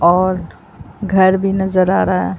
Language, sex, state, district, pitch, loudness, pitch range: Hindi, female, Bihar, Vaishali, 185 Hz, -15 LUFS, 180-190 Hz